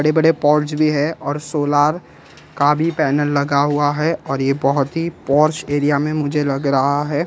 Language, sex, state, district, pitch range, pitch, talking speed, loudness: Hindi, male, Maharashtra, Mumbai Suburban, 140-155 Hz, 145 Hz, 200 wpm, -17 LUFS